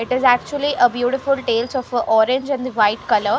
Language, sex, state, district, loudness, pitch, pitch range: English, female, Haryana, Rohtak, -18 LUFS, 250 Hz, 235-265 Hz